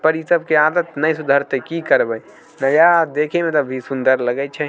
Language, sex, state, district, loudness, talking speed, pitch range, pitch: Maithili, male, Bihar, Samastipur, -17 LUFS, 215 wpm, 135-165 Hz, 150 Hz